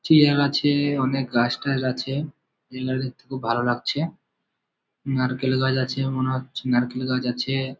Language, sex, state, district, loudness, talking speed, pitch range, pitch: Bengali, male, West Bengal, Malda, -23 LUFS, 145 wpm, 130-140 Hz, 130 Hz